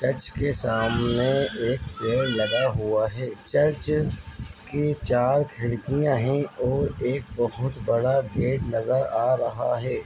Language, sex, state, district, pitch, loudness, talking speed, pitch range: Hindi, male, Bihar, Muzaffarpur, 130 Hz, -24 LUFS, 130 wpm, 115-140 Hz